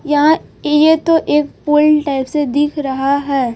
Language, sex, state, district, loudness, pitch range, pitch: Hindi, female, Chhattisgarh, Raipur, -14 LUFS, 280-305 Hz, 295 Hz